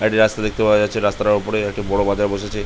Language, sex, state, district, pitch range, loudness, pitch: Bengali, male, West Bengal, Jhargram, 100-110 Hz, -18 LUFS, 105 Hz